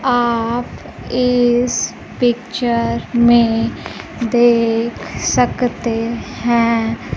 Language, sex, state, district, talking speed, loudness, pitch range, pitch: Hindi, female, Bihar, Kaimur, 60 wpm, -16 LUFS, 230-245 Hz, 235 Hz